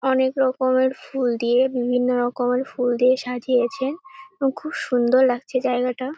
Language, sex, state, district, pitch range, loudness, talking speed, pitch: Bengali, female, West Bengal, North 24 Parganas, 245-265 Hz, -21 LUFS, 145 wpm, 255 Hz